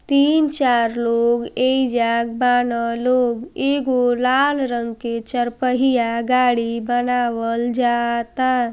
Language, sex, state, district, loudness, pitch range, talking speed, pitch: Bhojpuri, female, Uttar Pradesh, Gorakhpur, -18 LUFS, 235-255 Hz, 110 wpm, 245 Hz